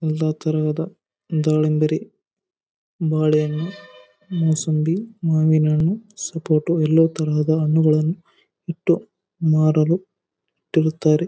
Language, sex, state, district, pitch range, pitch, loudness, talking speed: Kannada, male, Karnataka, Raichur, 155-170 Hz, 160 Hz, -20 LUFS, 75 wpm